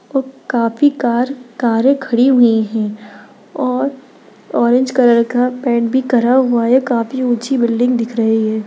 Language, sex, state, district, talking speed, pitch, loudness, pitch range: Hindi, female, Bihar, Darbhanga, 145 wpm, 245 Hz, -15 LUFS, 230-260 Hz